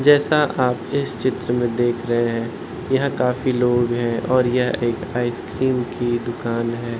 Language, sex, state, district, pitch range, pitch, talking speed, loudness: Hindi, male, Bihar, Patna, 120-130 Hz, 120 Hz, 165 wpm, -21 LUFS